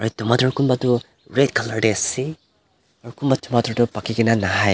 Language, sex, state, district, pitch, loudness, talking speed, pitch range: Nagamese, male, Nagaland, Dimapur, 120 Hz, -20 LUFS, 140 wpm, 110-130 Hz